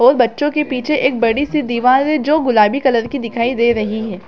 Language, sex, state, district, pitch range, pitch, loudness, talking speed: Hindi, female, Chhattisgarh, Bilaspur, 235-295 Hz, 255 Hz, -15 LUFS, 225 wpm